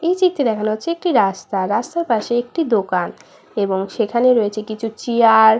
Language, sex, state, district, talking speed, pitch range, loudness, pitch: Bengali, female, West Bengal, Purulia, 160 wpm, 210-250 Hz, -18 LUFS, 225 Hz